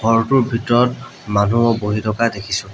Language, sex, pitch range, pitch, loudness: Assamese, male, 105-120 Hz, 115 Hz, -17 LUFS